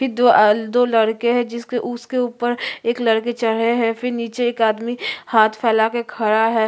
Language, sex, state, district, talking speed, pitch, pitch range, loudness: Hindi, female, Chhattisgarh, Sukma, 205 wpm, 235 Hz, 225-240 Hz, -18 LUFS